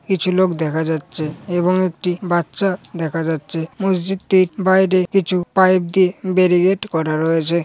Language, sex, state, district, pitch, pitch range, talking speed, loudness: Bengali, female, West Bengal, North 24 Parganas, 180 Hz, 165-185 Hz, 140 wpm, -18 LUFS